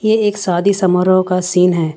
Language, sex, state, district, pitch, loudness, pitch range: Hindi, female, Jharkhand, Ranchi, 185 Hz, -14 LUFS, 180-200 Hz